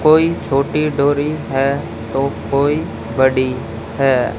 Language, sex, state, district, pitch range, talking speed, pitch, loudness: Hindi, male, Haryana, Charkhi Dadri, 130-145 Hz, 110 wpm, 135 Hz, -17 LUFS